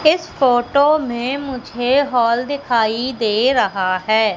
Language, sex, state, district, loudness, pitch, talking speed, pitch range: Hindi, female, Madhya Pradesh, Katni, -17 LUFS, 245 Hz, 125 wpm, 225-275 Hz